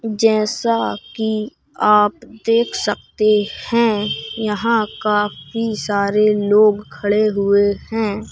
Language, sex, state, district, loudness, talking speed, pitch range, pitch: Hindi, male, Madhya Pradesh, Bhopal, -18 LUFS, 95 wpm, 205-225 Hz, 215 Hz